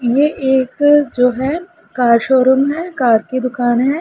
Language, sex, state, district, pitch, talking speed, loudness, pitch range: Hindi, female, Punjab, Pathankot, 260 Hz, 150 wpm, -14 LUFS, 250-290 Hz